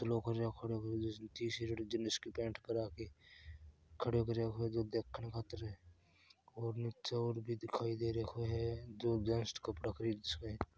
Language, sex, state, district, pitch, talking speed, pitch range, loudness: Marwari, male, Rajasthan, Churu, 115 Hz, 145 wpm, 110-115 Hz, -41 LUFS